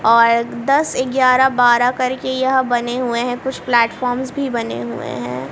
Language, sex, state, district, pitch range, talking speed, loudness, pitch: Hindi, female, Haryana, Rohtak, 230-260 Hz, 165 wpm, -17 LUFS, 245 Hz